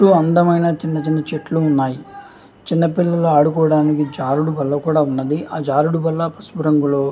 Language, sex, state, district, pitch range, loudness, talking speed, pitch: Telugu, male, Andhra Pradesh, Anantapur, 150-165 Hz, -17 LUFS, 120 wpm, 155 Hz